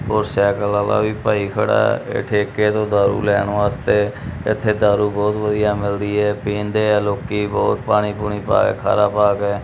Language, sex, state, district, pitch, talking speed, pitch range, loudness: Punjabi, male, Punjab, Kapurthala, 105 Hz, 180 wpm, 100-105 Hz, -18 LUFS